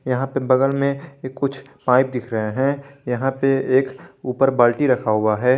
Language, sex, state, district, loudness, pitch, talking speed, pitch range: Hindi, male, Jharkhand, Garhwa, -20 LUFS, 130 Hz, 180 wpm, 125-135 Hz